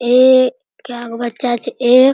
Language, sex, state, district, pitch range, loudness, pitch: Maithili, female, Bihar, Araria, 240-255 Hz, -14 LUFS, 250 Hz